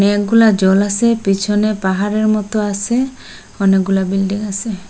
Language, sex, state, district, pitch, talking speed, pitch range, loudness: Bengali, female, Assam, Hailakandi, 205 Hz, 125 wpm, 195-215 Hz, -15 LUFS